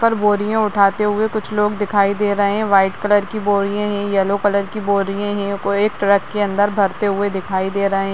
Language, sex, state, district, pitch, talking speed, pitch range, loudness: Hindi, female, Uttarakhand, Uttarkashi, 205 Hz, 220 wpm, 200-210 Hz, -18 LUFS